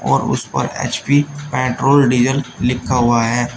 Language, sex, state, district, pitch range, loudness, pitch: Hindi, male, Uttar Pradesh, Shamli, 120-140 Hz, -16 LUFS, 125 Hz